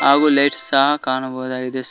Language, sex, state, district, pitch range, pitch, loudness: Kannada, male, Karnataka, Koppal, 130-140 Hz, 135 Hz, -17 LUFS